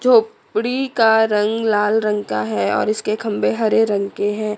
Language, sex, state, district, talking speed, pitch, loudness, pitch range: Hindi, female, Chandigarh, Chandigarh, 185 wpm, 215 Hz, -18 LUFS, 205-225 Hz